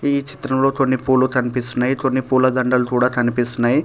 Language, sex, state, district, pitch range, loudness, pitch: Telugu, male, Telangana, Hyderabad, 125-135 Hz, -18 LUFS, 130 Hz